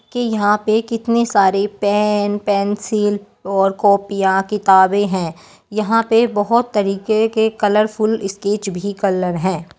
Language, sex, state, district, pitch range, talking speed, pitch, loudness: Hindi, female, Bihar, Begusarai, 195-215 Hz, 130 wpm, 205 Hz, -17 LUFS